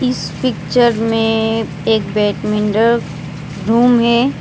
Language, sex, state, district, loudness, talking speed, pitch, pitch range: Hindi, female, West Bengal, Alipurduar, -15 LUFS, 95 wpm, 225 Hz, 205-235 Hz